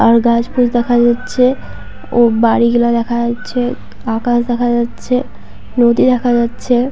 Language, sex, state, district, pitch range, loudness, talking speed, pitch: Bengali, female, West Bengal, Paschim Medinipur, 235-245 Hz, -14 LUFS, 130 wpm, 240 Hz